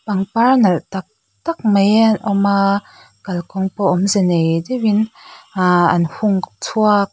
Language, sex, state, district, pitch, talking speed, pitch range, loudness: Mizo, female, Mizoram, Aizawl, 200 Hz, 150 wpm, 185-215 Hz, -16 LUFS